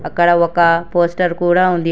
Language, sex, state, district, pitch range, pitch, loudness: Telugu, male, Telangana, Hyderabad, 170-175 Hz, 175 Hz, -14 LUFS